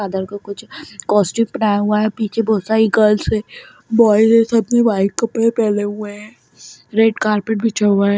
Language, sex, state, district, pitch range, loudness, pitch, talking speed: Kumaoni, female, Uttarakhand, Tehri Garhwal, 205-225 Hz, -16 LUFS, 215 Hz, 185 wpm